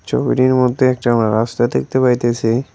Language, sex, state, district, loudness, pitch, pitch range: Bengali, male, West Bengal, Cooch Behar, -15 LUFS, 120 Hz, 115-130 Hz